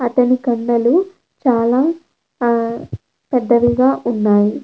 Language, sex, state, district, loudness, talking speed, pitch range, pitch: Telugu, female, Andhra Pradesh, Krishna, -16 LUFS, 80 wpm, 235-255 Hz, 240 Hz